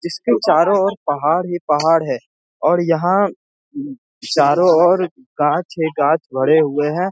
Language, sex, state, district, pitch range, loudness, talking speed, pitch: Hindi, male, Bihar, Jamui, 155-185 Hz, -16 LUFS, 145 wpm, 170 Hz